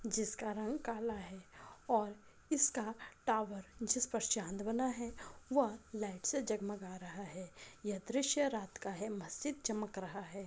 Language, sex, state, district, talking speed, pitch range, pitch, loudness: Hindi, female, Bihar, Saran, 155 wpm, 200-235 Hz, 220 Hz, -39 LUFS